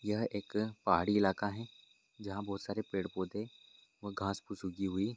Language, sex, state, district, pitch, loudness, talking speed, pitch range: Hindi, male, Bihar, Supaul, 100 Hz, -37 LUFS, 175 wpm, 100-105 Hz